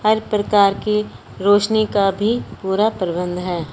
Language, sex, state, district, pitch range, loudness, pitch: Hindi, male, Punjab, Fazilka, 190-215 Hz, -18 LUFS, 205 Hz